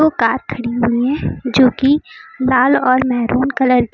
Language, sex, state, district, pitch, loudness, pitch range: Hindi, female, Uttar Pradesh, Lucknow, 255 Hz, -15 LUFS, 245-270 Hz